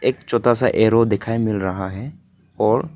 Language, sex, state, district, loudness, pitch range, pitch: Hindi, male, Arunachal Pradesh, Papum Pare, -19 LUFS, 100-120 Hz, 115 Hz